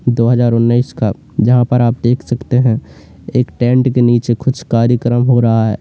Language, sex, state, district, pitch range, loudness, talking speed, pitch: Hindi, male, Uttar Pradesh, Lalitpur, 115-125 Hz, -13 LUFS, 195 wpm, 120 Hz